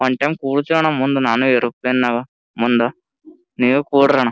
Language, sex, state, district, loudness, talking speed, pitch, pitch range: Kannada, male, Karnataka, Gulbarga, -17 LUFS, 165 wpm, 135 Hz, 125-145 Hz